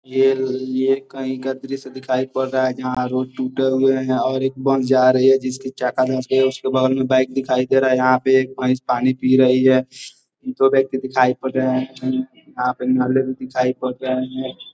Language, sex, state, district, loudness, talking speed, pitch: Hindi, male, Bihar, Gopalganj, -19 LUFS, 205 wpm, 130 Hz